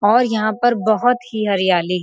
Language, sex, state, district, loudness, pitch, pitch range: Hindi, female, Bihar, Gopalganj, -17 LUFS, 215 Hz, 195-240 Hz